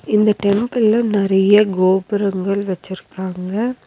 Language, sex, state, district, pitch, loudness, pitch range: Tamil, female, Tamil Nadu, Nilgiris, 200 Hz, -17 LUFS, 190-215 Hz